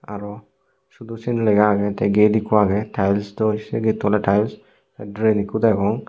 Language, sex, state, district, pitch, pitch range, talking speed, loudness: Chakma, male, Tripura, Unakoti, 105 Hz, 105-110 Hz, 195 wpm, -19 LUFS